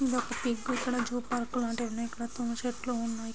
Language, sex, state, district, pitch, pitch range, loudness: Telugu, female, Andhra Pradesh, Srikakulam, 240 Hz, 235-245 Hz, -33 LUFS